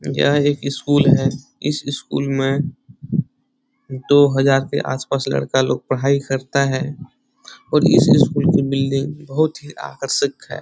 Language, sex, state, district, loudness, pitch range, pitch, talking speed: Hindi, male, Bihar, Lakhisarai, -18 LUFS, 135-145 Hz, 140 Hz, 140 wpm